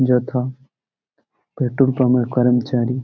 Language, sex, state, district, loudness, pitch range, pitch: Bengali, male, West Bengal, Malda, -18 LUFS, 125-130 Hz, 125 Hz